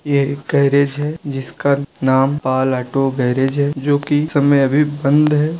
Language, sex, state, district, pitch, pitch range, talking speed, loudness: Hindi, male, Uttar Pradesh, Budaun, 140 Hz, 135-145 Hz, 170 wpm, -16 LUFS